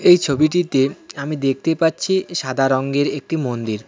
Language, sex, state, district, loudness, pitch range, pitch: Bengali, male, West Bengal, Cooch Behar, -19 LUFS, 135-165 Hz, 140 Hz